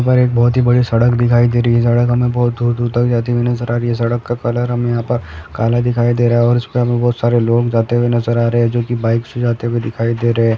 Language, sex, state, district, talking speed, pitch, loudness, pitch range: Hindi, male, Bihar, Gopalganj, 310 wpm, 120 Hz, -15 LUFS, 115-120 Hz